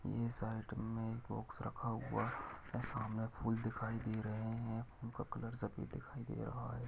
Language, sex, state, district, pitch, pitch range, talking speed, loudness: Hindi, male, Chhattisgarh, Kabirdham, 115 Hz, 110-120 Hz, 185 wpm, -42 LUFS